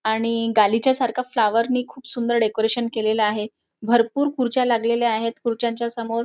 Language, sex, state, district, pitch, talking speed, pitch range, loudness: Marathi, female, Maharashtra, Nagpur, 235 Hz, 165 wpm, 225-245 Hz, -21 LUFS